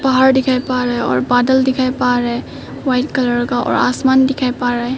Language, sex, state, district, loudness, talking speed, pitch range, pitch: Hindi, female, Arunachal Pradesh, Papum Pare, -15 LUFS, 230 wpm, 245-260 Hz, 255 Hz